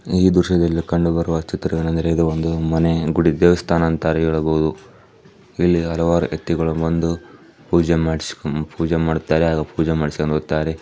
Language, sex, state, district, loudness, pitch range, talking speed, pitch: Kannada, male, Karnataka, Chamarajanagar, -19 LUFS, 80-85 Hz, 105 wpm, 80 Hz